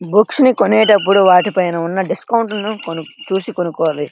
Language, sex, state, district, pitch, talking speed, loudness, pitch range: Telugu, male, Andhra Pradesh, Srikakulam, 190 Hz, 115 wpm, -14 LUFS, 170-215 Hz